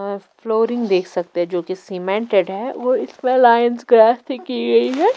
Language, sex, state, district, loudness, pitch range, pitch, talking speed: Hindi, female, Punjab, Pathankot, -17 LUFS, 190-245 Hz, 230 Hz, 175 wpm